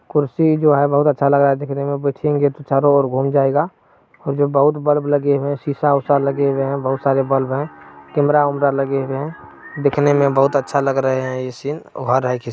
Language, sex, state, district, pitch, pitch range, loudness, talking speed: Maithili, male, Bihar, Purnia, 140 Hz, 135-145 Hz, -17 LUFS, 220 wpm